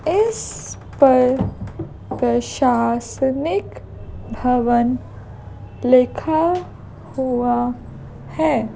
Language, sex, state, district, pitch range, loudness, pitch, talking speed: Hindi, female, Madhya Pradesh, Bhopal, 240-280 Hz, -19 LUFS, 250 Hz, 50 wpm